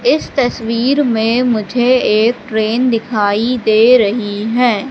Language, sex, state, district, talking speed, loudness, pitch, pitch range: Hindi, female, Madhya Pradesh, Katni, 120 wpm, -13 LUFS, 230 Hz, 220-250 Hz